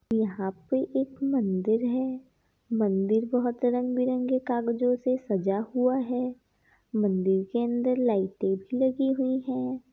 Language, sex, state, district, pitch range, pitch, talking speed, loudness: Hindi, female, Bihar, East Champaran, 215-255 Hz, 245 Hz, 125 wpm, -27 LUFS